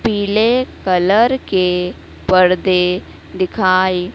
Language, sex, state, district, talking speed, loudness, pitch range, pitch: Hindi, female, Madhya Pradesh, Dhar, 70 wpm, -15 LUFS, 180-210 Hz, 185 Hz